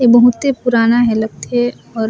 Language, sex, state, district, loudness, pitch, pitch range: Surgujia, female, Chhattisgarh, Sarguja, -14 LUFS, 240 Hz, 225-245 Hz